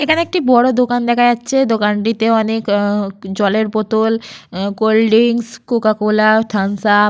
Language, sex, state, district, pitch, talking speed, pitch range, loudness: Bengali, female, Jharkhand, Sahebganj, 220 Hz, 145 wpm, 210-235 Hz, -15 LUFS